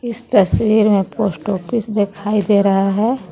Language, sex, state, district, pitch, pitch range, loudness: Hindi, female, Jharkhand, Garhwa, 210 Hz, 195-220 Hz, -16 LUFS